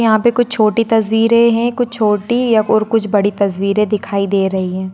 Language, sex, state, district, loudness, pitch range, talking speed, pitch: Magahi, female, Bihar, Gaya, -14 LUFS, 200-230 Hz, 195 wpm, 215 Hz